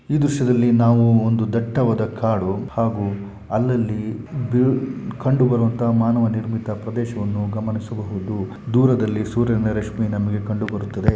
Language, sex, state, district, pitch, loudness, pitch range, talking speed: Kannada, male, Karnataka, Shimoga, 115 Hz, -20 LUFS, 105-120 Hz, 105 wpm